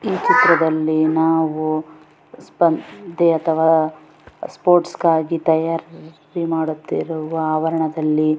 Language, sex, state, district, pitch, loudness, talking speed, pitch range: Kannada, female, Karnataka, Bellary, 160 Hz, -18 LUFS, 80 wpm, 155-165 Hz